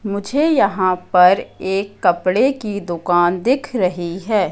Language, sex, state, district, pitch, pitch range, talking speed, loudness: Hindi, female, Madhya Pradesh, Katni, 190 Hz, 180-215 Hz, 135 wpm, -17 LUFS